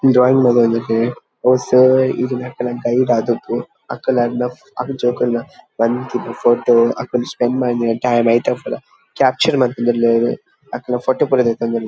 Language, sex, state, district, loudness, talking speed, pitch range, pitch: Tulu, male, Karnataka, Dakshina Kannada, -16 LUFS, 120 wpm, 120-125 Hz, 125 Hz